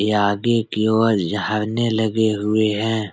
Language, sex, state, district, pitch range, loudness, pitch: Hindi, male, Bihar, Jahanabad, 105-110 Hz, -19 LUFS, 110 Hz